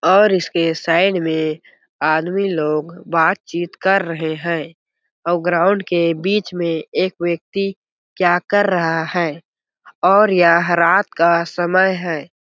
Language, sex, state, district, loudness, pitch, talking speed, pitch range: Hindi, male, Chhattisgarh, Balrampur, -17 LUFS, 170 Hz, 130 wpm, 165-185 Hz